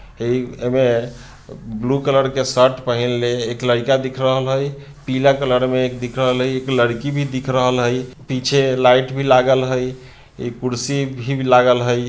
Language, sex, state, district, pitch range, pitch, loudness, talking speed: Bhojpuri, male, Bihar, Sitamarhi, 125-135 Hz, 130 Hz, -18 LUFS, 170 wpm